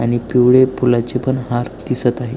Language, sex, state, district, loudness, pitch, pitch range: Marathi, male, Maharashtra, Aurangabad, -16 LUFS, 125 Hz, 120-125 Hz